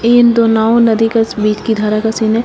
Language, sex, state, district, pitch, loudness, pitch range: Hindi, female, Uttar Pradesh, Shamli, 225 Hz, -12 LUFS, 220-230 Hz